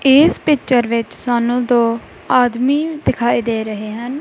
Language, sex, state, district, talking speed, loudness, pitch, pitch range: Punjabi, female, Punjab, Kapurthala, 140 wpm, -16 LUFS, 245 Hz, 230-270 Hz